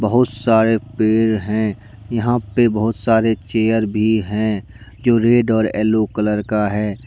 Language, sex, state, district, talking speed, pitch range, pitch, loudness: Hindi, male, Jharkhand, Deoghar, 155 wpm, 105-115 Hz, 110 Hz, -17 LUFS